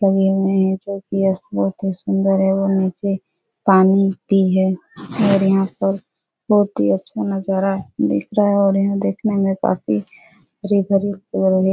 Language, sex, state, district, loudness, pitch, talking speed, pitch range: Hindi, female, Uttar Pradesh, Etah, -18 LUFS, 195 Hz, 160 wpm, 190-200 Hz